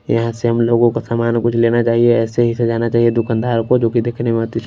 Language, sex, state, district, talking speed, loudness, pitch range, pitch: Hindi, male, Punjab, Kapurthala, 230 wpm, -16 LUFS, 115-120 Hz, 115 Hz